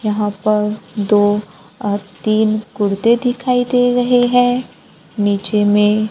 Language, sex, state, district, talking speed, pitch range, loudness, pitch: Hindi, male, Maharashtra, Gondia, 120 wpm, 205-245 Hz, -16 LUFS, 215 Hz